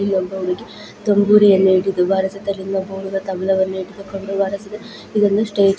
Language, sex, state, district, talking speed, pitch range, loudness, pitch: Kannada, female, Karnataka, Chamarajanagar, 135 wpm, 190-200 Hz, -18 LUFS, 195 Hz